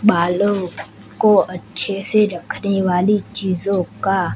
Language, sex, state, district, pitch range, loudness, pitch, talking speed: Hindi, male, Gujarat, Gandhinagar, 180-205 Hz, -18 LUFS, 195 Hz, 110 wpm